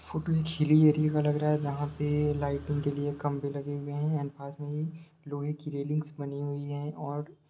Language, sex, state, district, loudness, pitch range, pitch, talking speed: Hindi, male, Bihar, Samastipur, -31 LUFS, 145-150 Hz, 145 Hz, 230 wpm